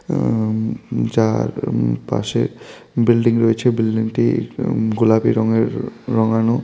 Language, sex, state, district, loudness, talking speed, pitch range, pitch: Bengali, male, Tripura, West Tripura, -18 LUFS, 80 wpm, 110-115 Hz, 115 Hz